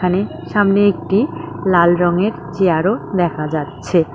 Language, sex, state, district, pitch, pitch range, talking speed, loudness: Bengali, female, West Bengal, Cooch Behar, 175 Hz, 160-195 Hz, 100 wpm, -16 LUFS